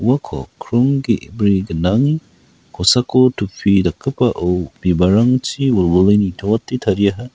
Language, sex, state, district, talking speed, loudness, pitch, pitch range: Garo, male, Meghalaya, West Garo Hills, 90 wpm, -16 LUFS, 105 Hz, 95-125 Hz